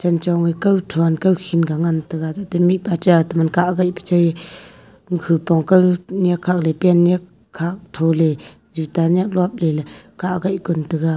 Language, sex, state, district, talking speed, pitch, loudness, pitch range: Wancho, female, Arunachal Pradesh, Longding, 175 wpm, 175 Hz, -18 LUFS, 165-180 Hz